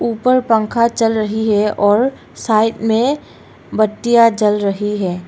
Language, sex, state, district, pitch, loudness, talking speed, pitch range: Hindi, female, Arunachal Pradesh, Longding, 220 Hz, -15 LUFS, 135 wpm, 210-235 Hz